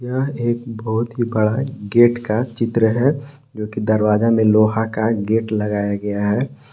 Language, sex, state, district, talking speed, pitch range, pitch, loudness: Hindi, male, Jharkhand, Palamu, 170 wpm, 105-120 Hz, 110 Hz, -18 LUFS